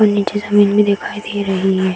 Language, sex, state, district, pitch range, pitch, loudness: Hindi, female, Bihar, Saran, 195-205 Hz, 205 Hz, -16 LUFS